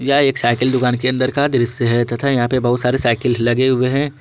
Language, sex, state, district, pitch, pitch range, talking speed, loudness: Hindi, male, Jharkhand, Ranchi, 125 Hz, 120-135 Hz, 255 wpm, -16 LUFS